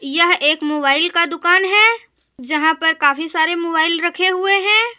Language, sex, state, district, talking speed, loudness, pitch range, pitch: Hindi, female, Jharkhand, Deoghar, 170 wpm, -15 LUFS, 310-370 Hz, 335 Hz